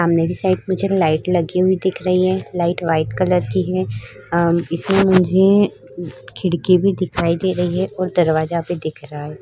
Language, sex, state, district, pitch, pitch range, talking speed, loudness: Hindi, female, Uttar Pradesh, Muzaffarnagar, 175 Hz, 165-185 Hz, 195 wpm, -18 LUFS